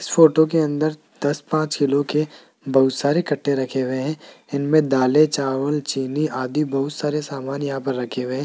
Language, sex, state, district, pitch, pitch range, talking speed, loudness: Hindi, male, Rajasthan, Jaipur, 145 Hz, 135-150 Hz, 190 wpm, -21 LUFS